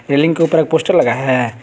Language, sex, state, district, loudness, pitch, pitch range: Hindi, male, Jharkhand, Garhwa, -14 LUFS, 140 Hz, 125-160 Hz